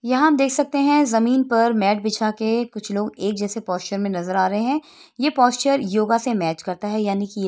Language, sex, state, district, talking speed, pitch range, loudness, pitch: Hindi, female, Uttar Pradesh, Etah, 240 wpm, 200-260 Hz, -20 LUFS, 220 Hz